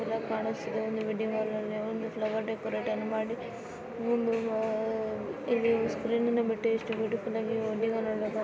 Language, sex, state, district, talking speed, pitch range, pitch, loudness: Kannada, female, Karnataka, Dharwad, 135 wpm, 220-230 Hz, 225 Hz, -31 LUFS